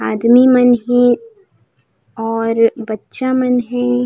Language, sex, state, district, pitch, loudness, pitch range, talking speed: Chhattisgarhi, female, Chhattisgarh, Raigarh, 245 Hz, -14 LUFS, 230-250 Hz, 105 wpm